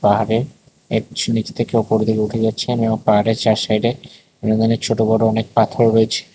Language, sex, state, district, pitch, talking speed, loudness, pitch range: Bengali, male, Tripura, West Tripura, 110 Hz, 170 wpm, -17 LUFS, 110-115 Hz